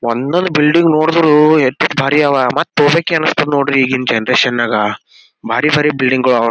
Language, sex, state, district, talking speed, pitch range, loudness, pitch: Kannada, male, Karnataka, Gulbarga, 165 wpm, 125-155 Hz, -12 LUFS, 140 Hz